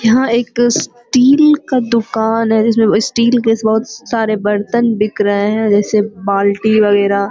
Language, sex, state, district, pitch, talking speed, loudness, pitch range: Hindi, female, Bihar, Jamui, 220 Hz, 155 wpm, -13 LUFS, 210-235 Hz